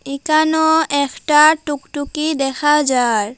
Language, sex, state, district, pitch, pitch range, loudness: Bengali, female, Assam, Hailakandi, 295 Hz, 275-310 Hz, -15 LUFS